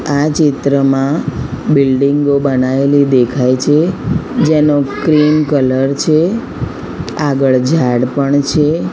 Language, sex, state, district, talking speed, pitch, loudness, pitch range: Gujarati, female, Gujarat, Gandhinagar, 95 wpm, 140 Hz, -13 LUFS, 135-150 Hz